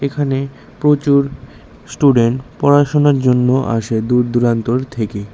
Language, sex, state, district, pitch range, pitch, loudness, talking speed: Bengali, male, Tripura, West Tripura, 120-140 Hz, 130 Hz, -15 LUFS, 90 wpm